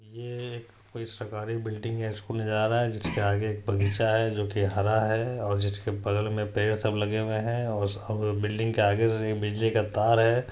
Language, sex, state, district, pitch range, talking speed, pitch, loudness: Hindi, male, Bihar, Supaul, 105-115 Hz, 170 wpm, 110 Hz, -28 LUFS